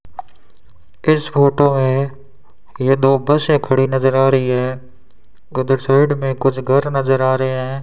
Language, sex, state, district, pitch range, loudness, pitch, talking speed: Hindi, male, Rajasthan, Bikaner, 130-135 Hz, -16 LUFS, 135 Hz, 155 wpm